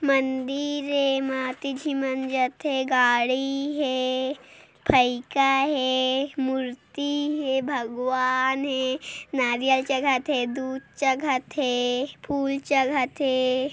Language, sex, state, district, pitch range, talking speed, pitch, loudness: Hindi, female, Chhattisgarh, Korba, 255-275 Hz, 105 wpm, 265 Hz, -24 LUFS